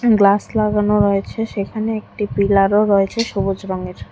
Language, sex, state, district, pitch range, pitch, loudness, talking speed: Bengali, female, Tripura, West Tripura, 195-215 Hz, 205 Hz, -17 LUFS, 130 wpm